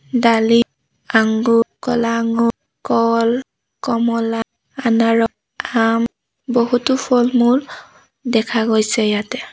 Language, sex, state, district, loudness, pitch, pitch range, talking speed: Assamese, female, Assam, Sonitpur, -17 LUFS, 230 Hz, 225-245 Hz, 80 wpm